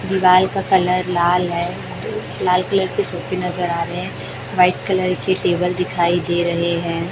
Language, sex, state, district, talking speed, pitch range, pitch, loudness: Hindi, female, Chhattisgarh, Raipur, 175 wpm, 175-185 Hz, 180 Hz, -19 LUFS